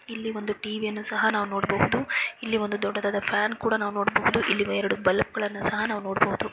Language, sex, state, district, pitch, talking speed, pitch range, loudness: Kannada, female, Karnataka, Chamarajanagar, 210 Hz, 175 wpm, 205-215 Hz, -26 LUFS